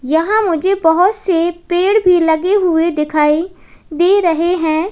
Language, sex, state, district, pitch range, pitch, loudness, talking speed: Hindi, female, Uttar Pradesh, Lalitpur, 320-370 Hz, 345 Hz, -14 LUFS, 145 wpm